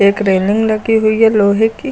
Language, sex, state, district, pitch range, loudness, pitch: Hindi, female, Uttar Pradesh, Lucknow, 200-225 Hz, -13 LUFS, 215 Hz